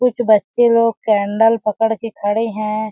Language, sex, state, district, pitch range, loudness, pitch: Hindi, female, Chhattisgarh, Balrampur, 215-230 Hz, -16 LUFS, 220 Hz